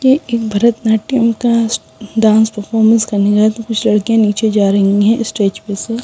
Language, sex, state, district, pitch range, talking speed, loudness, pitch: Hindi, female, Punjab, Kapurthala, 210-230 Hz, 200 wpm, -13 LUFS, 220 Hz